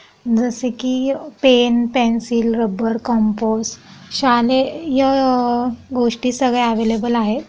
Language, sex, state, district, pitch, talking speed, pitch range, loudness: Marathi, female, Maharashtra, Pune, 240 Hz, 90 wpm, 230-255 Hz, -17 LUFS